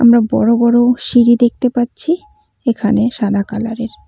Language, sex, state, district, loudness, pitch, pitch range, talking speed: Bengali, female, West Bengal, Cooch Behar, -14 LUFS, 235 Hz, 230-245 Hz, 130 wpm